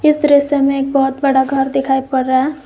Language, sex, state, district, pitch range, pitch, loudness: Hindi, female, Jharkhand, Garhwa, 265-285 Hz, 275 Hz, -14 LUFS